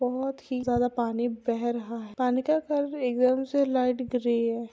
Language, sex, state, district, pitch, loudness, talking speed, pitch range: Hindi, female, Andhra Pradesh, Chittoor, 250 Hz, -27 LUFS, 180 wpm, 235-260 Hz